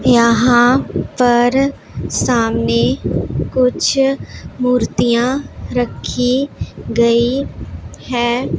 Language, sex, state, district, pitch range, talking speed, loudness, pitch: Hindi, female, Punjab, Pathankot, 235-255 Hz, 55 wpm, -15 LUFS, 245 Hz